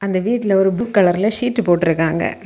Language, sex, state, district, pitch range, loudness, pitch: Tamil, female, Tamil Nadu, Kanyakumari, 175-225 Hz, -16 LUFS, 195 Hz